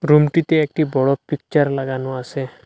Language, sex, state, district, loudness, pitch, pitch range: Bengali, male, Assam, Hailakandi, -19 LUFS, 140 Hz, 130-155 Hz